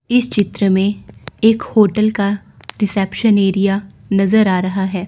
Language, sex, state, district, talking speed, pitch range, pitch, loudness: Hindi, female, Chandigarh, Chandigarh, 140 wpm, 195-215 Hz, 200 Hz, -16 LUFS